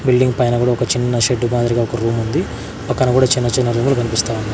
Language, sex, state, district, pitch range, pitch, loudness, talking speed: Telugu, male, Andhra Pradesh, Sri Satya Sai, 115-125 Hz, 120 Hz, -16 LUFS, 225 wpm